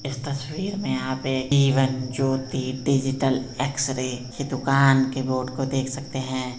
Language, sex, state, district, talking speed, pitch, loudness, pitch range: Hindi, male, Uttar Pradesh, Hamirpur, 165 wpm, 135 Hz, -24 LUFS, 130-135 Hz